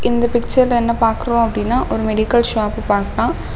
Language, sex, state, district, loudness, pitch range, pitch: Tamil, female, Tamil Nadu, Namakkal, -17 LUFS, 215-240 Hz, 235 Hz